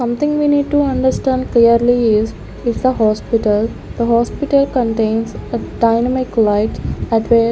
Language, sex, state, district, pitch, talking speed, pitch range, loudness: English, female, Chandigarh, Chandigarh, 235 Hz, 150 wpm, 225-260 Hz, -15 LUFS